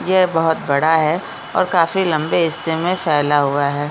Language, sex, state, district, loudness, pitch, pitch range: Hindi, female, Uttarakhand, Uttarkashi, -17 LUFS, 160 Hz, 150-180 Hz